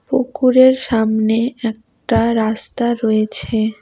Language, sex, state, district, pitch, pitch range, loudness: Bengali, female, West Bengal, Cooch Behar, 225 Hz, 220-245 Hz, -16 LUFS